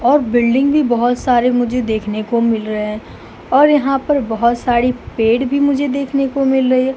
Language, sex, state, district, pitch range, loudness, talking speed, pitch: Hindi, female, Uttar Pradesh, Hamirpur, 235-275 Hz, -15 LUFS, 205 wpm, 250 Hz